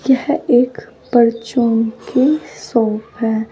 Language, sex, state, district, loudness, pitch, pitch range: Hindi, female, Uttar Pradesh, Saharanpur, -16 LUFS, 240 Hz, 225-255 Hz